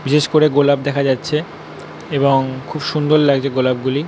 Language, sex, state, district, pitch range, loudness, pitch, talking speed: Bengali, male, West Bengal, North 24 Parganas, 135-150 Hz, -16 LUFS, 140 Hz, 160 wpm